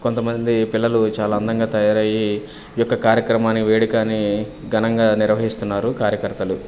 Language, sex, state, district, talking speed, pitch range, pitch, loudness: Telugu, male, Andhra Pradesh, Manyam, 110 wpm, 105-115 Hz, 110 Hz, -19 LUFS